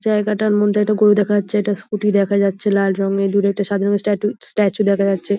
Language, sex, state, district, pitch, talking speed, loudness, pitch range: Bengali, female, West Bengal, Jhargram, 205 Hz, 220 wpm, -17 LUFS, 200-210 Hz